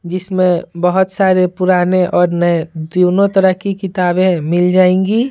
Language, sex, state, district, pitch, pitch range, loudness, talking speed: Hindi, female, Bihar, Patna, 180 Hz, 175-190 Hz, -13 LUFS, 135 wpm